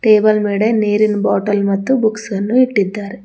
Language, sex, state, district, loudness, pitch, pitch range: Kannada, female, Karnataka, Bangalore, -15 LUFS, 210 Hz, 205-220 Hz